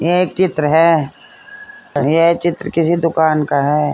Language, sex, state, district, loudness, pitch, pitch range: Hindi, female, Uttar Pradesh, Saharanpur, -15 LUFS, 165 Hz, 155-185 Hz